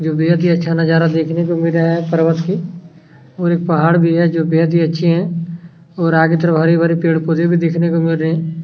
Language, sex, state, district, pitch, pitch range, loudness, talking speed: Hindi, male, Chhattisgarh, Kabirdham, 165 Hz, 165-170 Hz, -15 LUFS, 220 wpm